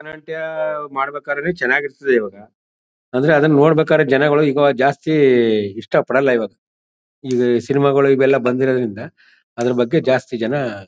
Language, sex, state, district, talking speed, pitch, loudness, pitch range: Kannada, male, Karnataka, Mysore, 110 wpm, 140 Hz, -16 LUFS, 125-150 Hz